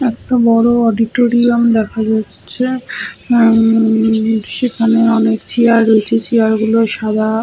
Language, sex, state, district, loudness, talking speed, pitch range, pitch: Bengali, female, West Bengal, Paschim Medinipur, -13 LUFS, 95 wpm, 220-235 Hz, 225 Hz